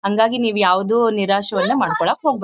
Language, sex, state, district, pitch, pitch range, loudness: Kannada, female, Karnataka, Dharwad, 215 Hz, 195-230 Hz, -17 LUFS